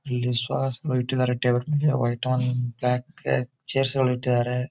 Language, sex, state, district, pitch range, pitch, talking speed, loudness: Kannada, male, Karnataka, Bijapur, 125-130 Hz, 125 Hz, 155 wpm, -25 LUFS